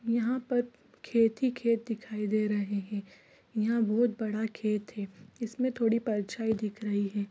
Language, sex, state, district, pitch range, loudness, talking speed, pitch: Hindi, female, Bihar, East Champaran, 210-235 Hz, -31 LUFS, 215 wpm, 220 Hz